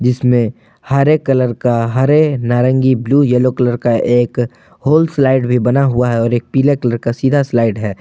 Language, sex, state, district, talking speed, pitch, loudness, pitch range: Hindi, male, Jharkhand, Palamu, 185 wpm, 125 Hz, -14 LUFS, 120-135 Hz